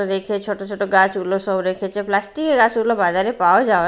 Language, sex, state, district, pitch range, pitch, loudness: Bengali, female, Odisha, Malkangiri, 190-215 Hz, 200 Hz, -18 LUFS